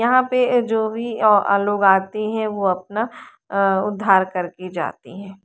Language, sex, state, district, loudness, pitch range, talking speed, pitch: Hindi, female, Haryana, Rohtak, -19 LUFS, 195-225 Hz, 175 wpm, 205 Hz